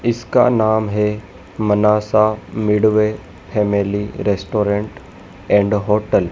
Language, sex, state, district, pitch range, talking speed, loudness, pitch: Hindi, male, Madhya Pradesh, Dhar, 105-110 Hz, 95 wpm, -17 LUFS, 105 Hz